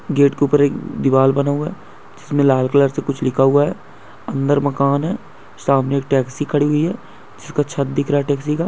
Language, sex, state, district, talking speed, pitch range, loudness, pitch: Hindi, male, West Bengal, North 24 Parganas, 220 wpm, 135-145 Hz, -18 LUFS, 140 Hz